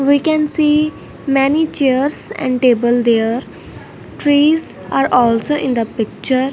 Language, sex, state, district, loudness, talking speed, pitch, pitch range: English, female, Punjab, Fazilka, -15 LUFS, 130 wpm, 270 Hz, 245-295 Hz